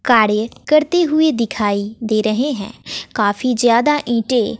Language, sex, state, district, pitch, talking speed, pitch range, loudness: Hindi, female, Bihar, West Champaran, 235 Hz, 130 wpm, 215-285 Hz, -17 LUFS